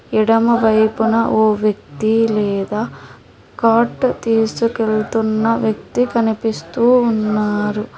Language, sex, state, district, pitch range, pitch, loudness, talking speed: Telugu, female, Telangana, Hyderabad, 215-230 Hz, 220 Hz, -16 LUFS, 70 wpm